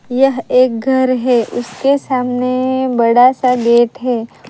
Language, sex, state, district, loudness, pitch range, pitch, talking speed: Hindi, female, Gujarat, Valsad, -14 LUFS, 240-260 Hz, 250 Hz, 135 wpm